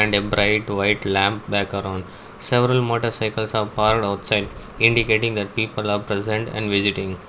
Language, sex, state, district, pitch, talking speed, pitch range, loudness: English, male, Karnataka, Bangalore, 105 Hz, 150 wpm, 100-110 Hz, -20 LUFS